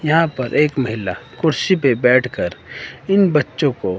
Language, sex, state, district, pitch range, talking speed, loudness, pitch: Hindi, female, Himachal Pradesh, Shimla, 125-160 Hz, 165 wpm, -17 LUFS, 130 Hz